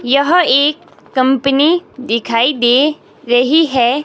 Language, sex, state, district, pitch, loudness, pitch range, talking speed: Hindi, female, Himachal Pradesh, Shimla, 270 Hz, -13 LUFS, 245-295 Hz, 105 wpm